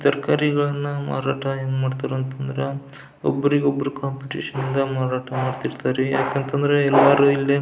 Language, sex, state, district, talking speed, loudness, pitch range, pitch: Kannada, male, Karnataka, Belgaum, 120 wpm, -22 LUFS, 130-140 Hz, 140 Hz